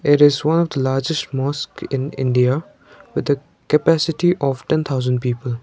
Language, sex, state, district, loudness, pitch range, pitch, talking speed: English, male, Sikkim, Gangtok, -19 LUFS, 130-155 Hz, 140 Hz, 170 wpm